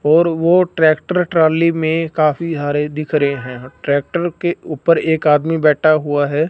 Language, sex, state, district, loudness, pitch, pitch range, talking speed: Hindi, male, Punjab, Fazilka, -16 LUFS, 155 Hz, 150-165 Hz, 165 wpm